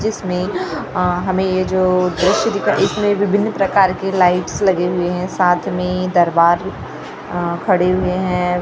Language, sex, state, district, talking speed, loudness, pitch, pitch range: Hindi, female, Maharashtra, Gondia, 155 wpm, -16 LUFS, 180 Hz, 180-190 Hz